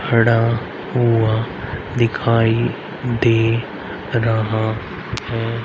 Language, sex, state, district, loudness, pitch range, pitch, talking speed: Hindi, male, Haryana, Rohtak, -19 LUFS, 110-120 Hz, 115 Hz, 65 wpm